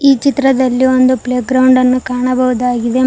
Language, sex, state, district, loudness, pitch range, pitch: Kannada, female, Karnataka, Koppal, -12 LUFS, 250-260 Hz, 255 Hz